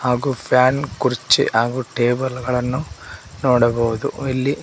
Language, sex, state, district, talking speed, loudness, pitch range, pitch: Kannada, male, Karnataka, Koppal, 105 wpm, -19 LUFS, 120-130 Hz, 125 Hz